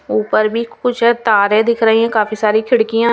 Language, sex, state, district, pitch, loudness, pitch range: Hindi, female, Chandigarh, Chandigarh, 225 Hz, -14 LUFS, 215-235 Hz